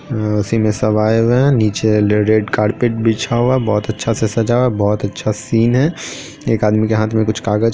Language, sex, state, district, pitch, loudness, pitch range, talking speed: Hindi, male, Bihar, Purnia, 110 Hz, -15 LUFS, 105-120 Hz, 255 wpm